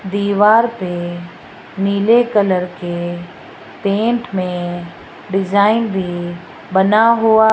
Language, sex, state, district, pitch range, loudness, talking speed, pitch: Hindi, female, Rajasthan, Jaipur, 175-215 Hz, -16 LUFS, 95 wpm, 195 Hz